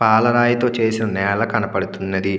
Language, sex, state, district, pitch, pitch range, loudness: Telugu, male, Andhra Pradesh, Anantapur, 110 Hz, 95-115 Hz, -18 LUFS